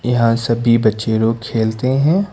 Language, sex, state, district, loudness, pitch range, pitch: Hindi, male, Karnataka, Bangalore, -16 LUFS, 110-125 Hz, 115 Hz